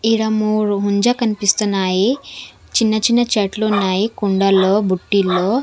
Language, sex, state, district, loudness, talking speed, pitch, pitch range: Telugu, female, Andhra Pradesh, Sri Satya Sai, -16 LUFS, 105 wpm, 210 Hz, 195-220 Hz